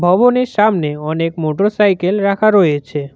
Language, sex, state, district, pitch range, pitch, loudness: Bengali, male, West Bengal, Cooch Behar, 155-210 Hz, 185 Hz, -14 LUFS